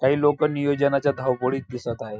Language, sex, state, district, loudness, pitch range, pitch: Marathi, female, Maharashtra, Dhule, -23 LUFS, 125-145 Hz, 135 Hz